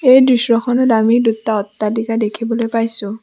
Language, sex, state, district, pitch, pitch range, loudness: Assamese, female, Assam, Sonitpur, 230 Hz, 220-235 Hz, -15 LUFS